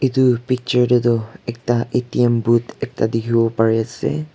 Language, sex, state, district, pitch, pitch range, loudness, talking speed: Nagamese, male, Nagaland, Kohima, 120 Hz, 115-125 Hz, -18 LUFS, 150 wpm